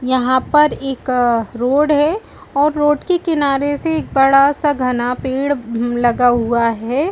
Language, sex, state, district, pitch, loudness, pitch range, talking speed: Hindi, female, Chhattisgarh, Balrampur, 270 Hz, -16 LUFS, 245-295 Hz, 170 wpm